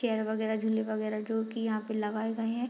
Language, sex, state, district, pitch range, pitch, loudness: Hindi, female, Bihar, Madhepura, 220-225 Hz, 220 Hz, -32 LUFS